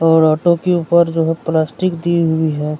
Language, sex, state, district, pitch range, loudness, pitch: Hindi, male, Bihar, Kishanganj, 160-170 Hz, -15 LUFS, 165 Hz